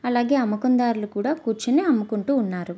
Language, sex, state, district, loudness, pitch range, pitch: Telugu, female, Andhra Pradesh, Visakhapatnam, -22 LUFS, 210-265 Hz, 240 Hz